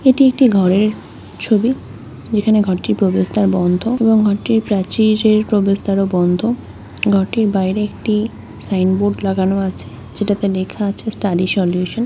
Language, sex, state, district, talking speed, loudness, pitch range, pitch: Bengali, female, West Bengal, North 24 Parganas, 120 wpm, -16 LUFS, 190-220 Hz, 205 Hz